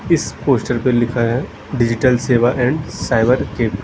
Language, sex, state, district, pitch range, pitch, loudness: Hindi, male, Arunachal Pradesh, Lower Dibang Valley, 115-130 Hz, 120 Hz, -17 LUFS